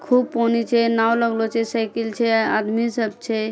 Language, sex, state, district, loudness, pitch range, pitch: Angika, female, Bihar, Bhagalpur, -20 LUFS, 225-235 Hz, 230 Hz